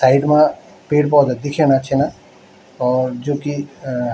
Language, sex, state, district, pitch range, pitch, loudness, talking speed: Garhwali, male, Uttarakhand, Tehri Garhwal, 130-145 Hz, 140 Hz, -17 LUFS, 145 wpm